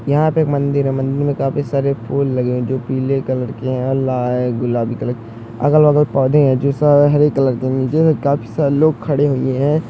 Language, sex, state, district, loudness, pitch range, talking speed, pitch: Hindi, male, Uttar Pradesh, Hamirpur, -16 LUFS, 130-145 Hz, 235 wpm, 135 Hz